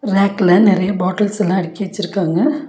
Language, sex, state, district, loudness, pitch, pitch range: Tamil, female, Tamil Nadu, Nilgiris, -16 LUFS, 195 Hz, 185-205 Hz